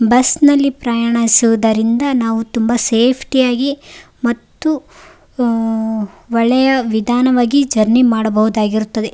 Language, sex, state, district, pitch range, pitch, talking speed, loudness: Kannada, female, Karnataka, Raichur, 225-255 Hz, 235 Hz, 85 wpm, -14 LUFS